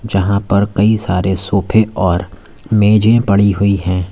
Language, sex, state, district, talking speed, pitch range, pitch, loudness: Hindi, male, Uttar Pradesh, Lalitpur, 145 wpm, 95-105 Hz, 100 Hz, -13 LUFS